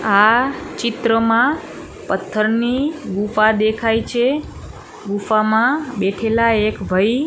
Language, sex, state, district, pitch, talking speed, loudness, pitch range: Gujarati, female, Gujarat, Gandhinagar, 225 Hz, 80 wpm, -17 LUFS, 215-245 Hz